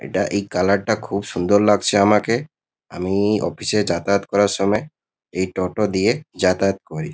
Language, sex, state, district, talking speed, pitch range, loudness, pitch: Bengali, male, West Bengal, Kolkata, 160 wpm, 95-105 Hz, -19 LUFS, 100 Hz